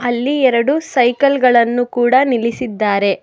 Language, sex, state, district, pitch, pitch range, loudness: Kannada, female, Karnataka, Bangalore, 245 Hz, 235-260 Hz, -14 LUFS